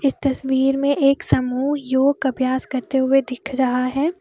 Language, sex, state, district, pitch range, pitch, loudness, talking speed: Hindi, female, Jharkhand, Deoghar, 260-275 Hz, 265 Hz, -20 LUFS, 170 wpm